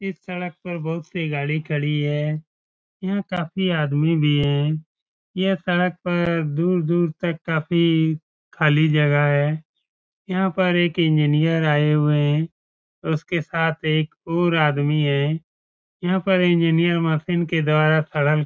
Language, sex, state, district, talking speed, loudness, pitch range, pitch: Hindi, male, Bihar, Saran, 135 wpm, -21 LUFS, 150-175 Hz, 160 Hz